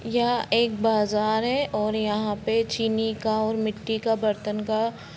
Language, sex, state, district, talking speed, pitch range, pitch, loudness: Hindi, female, Jharkhand, Jamtara, 160 wpm, 210-225 Hz, 220 Hz, -25 LUFS